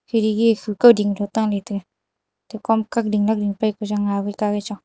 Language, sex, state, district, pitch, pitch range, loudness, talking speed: Wancho, female, Arunachal Pradesh, Longding, 210 Hz, 205-220 Hz, -20 LUFS, 225 wpm